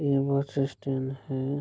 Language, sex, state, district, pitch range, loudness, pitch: Hindi, male, Bihar, Kishanganj, 135-140 Hz, -29 LUFS, 135 Hz